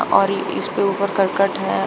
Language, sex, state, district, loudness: Hindi, female, Uttar Pradesh, Shamli, -19 LUFS